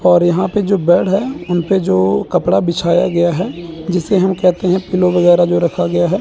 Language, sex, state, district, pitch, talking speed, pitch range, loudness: Hindi, male, Chandigarh, Chandigarh, 180 Hz, 210 wpm, 175-185 Hz, -14 LUFS